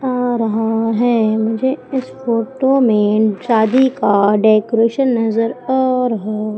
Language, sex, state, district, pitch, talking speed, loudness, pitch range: Hindi, female, Madhya Pradesh, Umaria, 230 Hz, 120 wpm, -15 LUFS, 220-255 Hz